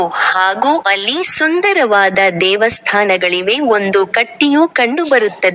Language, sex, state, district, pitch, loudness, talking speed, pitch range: Kannada, female, Karnataka, Koppal, 210 Hz, -12 LUFS, 85 wpm, 195-290 Hz